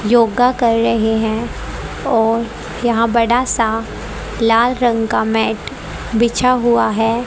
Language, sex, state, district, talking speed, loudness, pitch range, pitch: Hindi, female, Haryana, Rohtak, 125 wpm, -16 LUFS, 225-240 Hz, 230 Hz